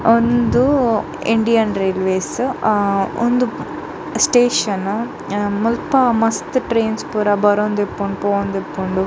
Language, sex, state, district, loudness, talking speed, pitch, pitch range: Tulu, female, Karnataka, Dakshina Kannada, -17 LUFS, 80 wpm, 215 Hz, 200-235 Hz